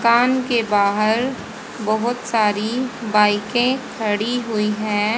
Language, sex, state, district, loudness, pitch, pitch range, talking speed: Hindi, female, Haryana, Jhajjar, -19 LUFS, 220 Hz, 210-240 Hz, 105 wpm